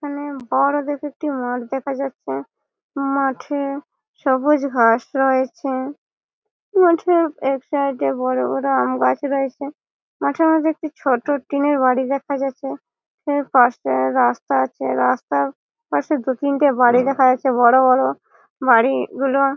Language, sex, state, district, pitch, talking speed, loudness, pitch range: Bengali, female, West Bengal, Malda, 270 Hz, 130 wpm, -19 LUFS, 245-285 Hz